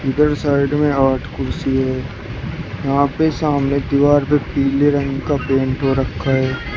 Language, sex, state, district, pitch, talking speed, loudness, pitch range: Hindi, male, Uttar Pradesh, Shamli, 140 Hz, 160 wpm, -17 LUFS, 135-145 Hz